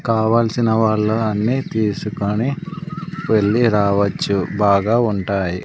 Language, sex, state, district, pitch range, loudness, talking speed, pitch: Telugu, male, Andhra Pradesh, Sri Satya Sai, 100-120 Hz, -18 LUFS, 85 wpm, 110 Hz